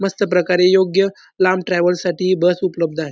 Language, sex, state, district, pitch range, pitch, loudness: Marathi, male, Maharashtra, Dhule, 175-185 Hz, 180 Hz, -17 LUFS